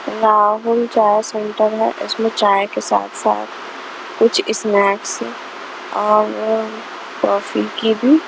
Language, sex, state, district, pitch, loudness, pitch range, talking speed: Hindi, female, Punjab, Kapurthala, 215 Hz, -17 LUFS, 210-225 Hz, 100 wpm